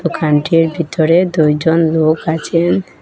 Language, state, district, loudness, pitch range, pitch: Bengali, Assam, Hailakandi, -14 LUFS, 155-170 Hz, 165 Hz